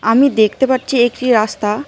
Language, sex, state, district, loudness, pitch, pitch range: Bengali, female, West Bengal, Cooch Behar, -14 LUFS, 245 Hz, 215-260 Hz